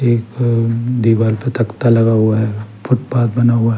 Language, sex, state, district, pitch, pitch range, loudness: Hindi, male, Bihar, Patna, 115 Hz, 115-120 Hz, -15 LUFS